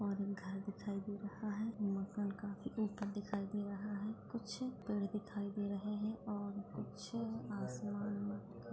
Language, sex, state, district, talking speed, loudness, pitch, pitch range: Hindi, female, Goa, North and South Goa, 170 wpm, -43 LUFS, 205 Hz, 200-210 Hz